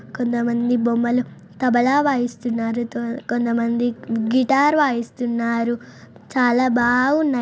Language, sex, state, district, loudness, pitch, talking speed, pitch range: Telugu, female, Andhra Pradesh, Chittoor, -20 LUFS, 240 Hz, 65 wpm, 235-255 Hz